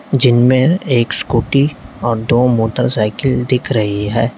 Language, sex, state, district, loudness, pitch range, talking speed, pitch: Hindi, male, Uttar Pradesh, Lalitpur, -14 LUFS, 115-130 Hz, 125 wpm, 125 Hz